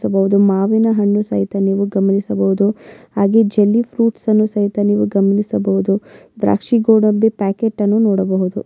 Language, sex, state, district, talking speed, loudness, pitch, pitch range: Kannada, female, Karnataka, Mysore, 130 wpm, -15 LUFS, 205 Hz, 195-220 Hz